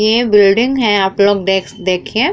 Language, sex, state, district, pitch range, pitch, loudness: Hindi, female, Uttar Pradesh, Muzaffarnagar, 195-220 Hz, 205 Hz, -13 LUFS